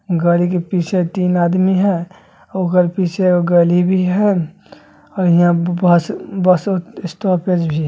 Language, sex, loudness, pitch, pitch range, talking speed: Bajjika, male, -15 LUFS, 180 Hz, 175-185 Hz, 135 wpm